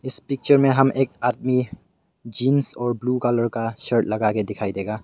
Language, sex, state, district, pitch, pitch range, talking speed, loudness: Hindi, male, Meghalaya, West Garo Hills, 120 Hz, 115-135 Hz, 190 wpm, -22 LUFS